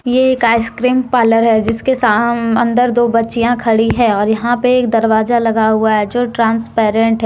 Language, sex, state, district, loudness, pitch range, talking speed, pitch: Hindi, female, Jharkhand, Deoghar, -13 LUFS, 225-245 Hz, 180 wpm, 230 Hz